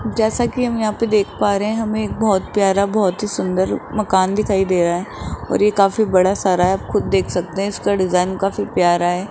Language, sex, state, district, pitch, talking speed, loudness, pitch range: Hindi, male, Rajasthan, Jaipur, 195 Hz, 240 wpm, -18 LUFS, 185-215 Hz